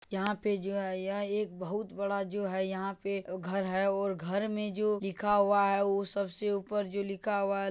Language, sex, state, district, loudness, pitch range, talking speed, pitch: Maithili, male, Bihar, Madhepura, -32 LUFS, 195-205 Hz, 225 wpm, 200 Hz